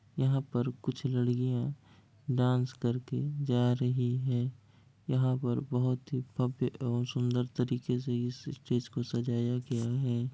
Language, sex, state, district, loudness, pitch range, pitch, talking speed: Hindi, male, Bihar, Kishanganj, -32 LUFS, 120-130 Hz, 125 Hz, 145 wpm